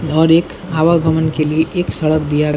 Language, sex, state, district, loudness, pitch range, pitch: Hindi, male, Bihar, Saran, -15 LUFS, 155-165 Hz, 160 Hz